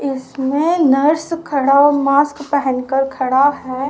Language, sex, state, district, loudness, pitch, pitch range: Hindi, female, Haryana, Rohtak, -15 LUFS, 280 Hz, 270-290 Hz